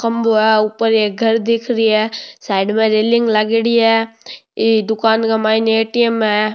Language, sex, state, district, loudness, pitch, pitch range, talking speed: Rajasthani, male, Rajasthan, Nagaur, -15 LUFS, 225 Hz, 215-230 Hz, 175 wpm